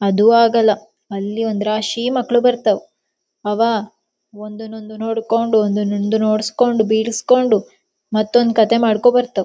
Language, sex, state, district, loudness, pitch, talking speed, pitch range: Kannada, female, Karnataka, Shimoga, -16 LUFS, 220 Hz, 120 wpm, 215-230 Hz